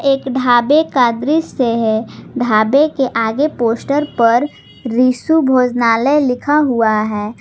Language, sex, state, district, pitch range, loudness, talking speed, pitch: Hindi, female, Jharkhand, Garhwa, 230-285 Hz, -14 LUFS, 120 wpm, 250 Hz